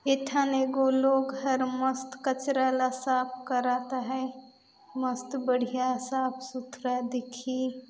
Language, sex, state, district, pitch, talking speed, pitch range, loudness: Chhattisgarhi, female, Chhattisgarh, Balrampur, 260 Hz, 120 wpm, 255-265 Hz, -29 LUFS